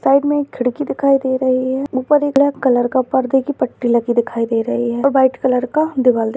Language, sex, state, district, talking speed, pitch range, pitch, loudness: Hindi, female, Uttar Pradesh, Deoria, 255 wpm, 245-275 Hz, 260 Hz, -16 LUFS